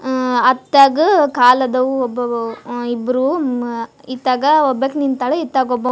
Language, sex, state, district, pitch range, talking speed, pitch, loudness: Kannada, female, Karnataka, Dharwad, 245-270 Hz, 140 wpm, 255 Hz, -15 LUFS